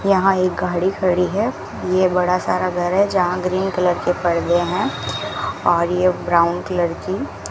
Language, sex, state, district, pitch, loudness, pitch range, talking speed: Hindi, female, Rajasthan, Bikaner, 180 Hz, -19 LUFS, 175-185 Hz, 175 wpm